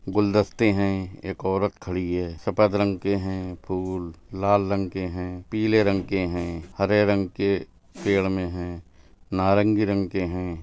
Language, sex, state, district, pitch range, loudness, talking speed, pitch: Hindi, male, Uttar Pradesh, Budaun, 90-100 Hz, -24 LUFS, 160 wpm, 95 Hz